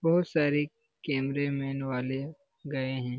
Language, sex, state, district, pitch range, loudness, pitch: Hindi, male, Bihar, Lakhisarai, 135-155 Hz, -31 LUFS, 140 Hz